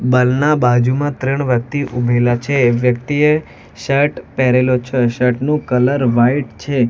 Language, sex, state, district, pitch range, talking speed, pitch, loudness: Gujarati, male, Gujarat, Valsad, 125-140 Hz, 130 wpm, 125 Hz, -15 LUFS